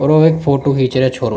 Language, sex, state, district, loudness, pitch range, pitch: Rajasthani, male, Rajasthan, Nagaur, -14 LUFS, 130-155 Hz, 140 Hz